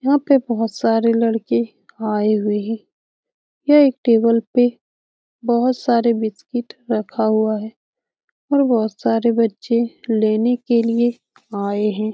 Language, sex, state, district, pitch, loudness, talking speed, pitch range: Hindi, female, Bihar, Saran, 230 Hz, -18 LUFS, 140 wpm, 215-245 Hz